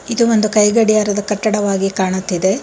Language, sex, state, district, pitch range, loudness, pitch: Kannada, female, Karnataka, Bangalore, 195-215 Hz, -15 LUFS, 210 Hz